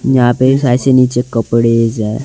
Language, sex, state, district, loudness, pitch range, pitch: Hindi, male, Delhi, New Delhi, -12 LUFS, 115-130 Hz, 125 Hz